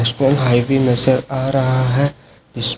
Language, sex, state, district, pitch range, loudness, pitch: Hindi, male, Chhattisgarh, Raipur, 120-135 Hz, -16 LUFS, 130 Hz